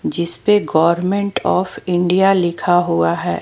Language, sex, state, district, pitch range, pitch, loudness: Hindi, female, Jharkhand, Ranchi, 170-195 Hz, 175 Hz, -16 LUFS